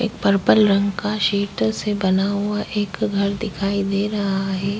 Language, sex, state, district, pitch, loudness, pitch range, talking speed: Hindi, female, Bihar, Vaishali, 200 Hz, -20 LUFS, 195-210 Hz, 175 wpm